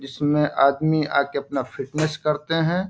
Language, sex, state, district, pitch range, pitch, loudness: Hindi, male, Bihar, Bhagalpur, 140-155 Hz, 150 Hz, -22 LUFS